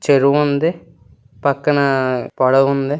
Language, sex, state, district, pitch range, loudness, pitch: Telugu, male, Andhra Pradesh, Srikakulam, 130-145 Hz, -16 LUFS, 140 Hz